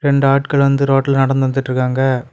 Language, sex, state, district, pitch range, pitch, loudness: Tamil, male, Tamil Nadu, Kanyakumari, 130-140 Hz, 135 Hz, -15 LUFS